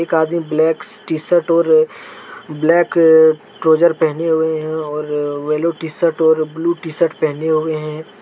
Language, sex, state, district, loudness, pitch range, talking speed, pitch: Hindi, male, Jharkhand, Deoghar, -16 LUFS, 155-170 Hz, 140 wpm, 160 Hz